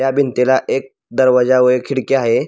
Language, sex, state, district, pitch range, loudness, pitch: Marathi, male, Maharashtra, Pune, 125-135 Hz, -15 LUFS, 130 Hz